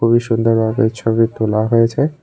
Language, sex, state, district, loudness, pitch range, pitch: Bengali, male, Tripura, West Tripura, -15 LUFS, 110-115 Hz, 115 Hz